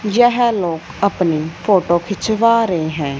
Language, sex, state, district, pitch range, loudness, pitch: Hindi, female, Punjab, Fazilka, 165-225 Hz, -16 LUFS, 185 Hz